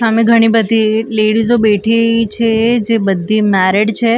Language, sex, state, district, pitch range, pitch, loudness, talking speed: Gujarati, female, Maharashtra, Mumbai Suburban, 215-230 Hz, 225 Hz, -12 LUFS, 145 wpm